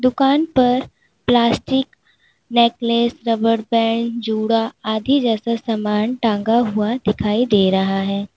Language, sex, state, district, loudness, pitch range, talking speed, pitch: Hindi, female, Uttar Pradesh, Lalitpur, -18 LUFS, 215-240 Hz, 115 wpm, 230 Hz